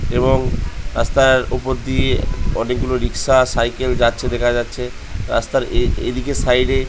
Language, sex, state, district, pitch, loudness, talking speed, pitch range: Bengali, male, West Bengal, Jhargram, 125 Hz, -18 LUFS, 140 wpm, 120-130 Hz